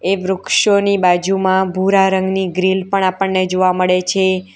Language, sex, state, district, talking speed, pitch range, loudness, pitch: Gujarati, female, Gujarat, Valsad, 145 wpm, 185-195 Hz, -15 LUFS, 190 Hz